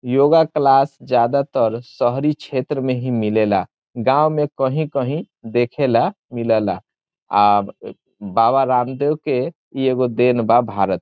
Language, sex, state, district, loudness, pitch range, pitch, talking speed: Bhojpuri, male, Bihar, Saran, -18 LUFS, 115-140 Hz, 130 Hz, 140 wpm